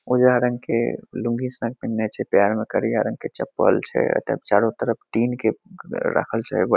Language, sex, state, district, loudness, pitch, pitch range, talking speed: Maithili, male, Bihar, Madhepura, -22 LUFS, 125 Hz, 115-125 Hz, 215 wpm